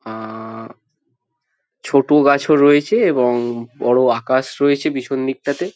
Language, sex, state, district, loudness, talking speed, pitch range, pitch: Bengali, male, West Bengal, Jhargram, -16 LUFS, 135 wpm, 120-145 Hz, 130 Hz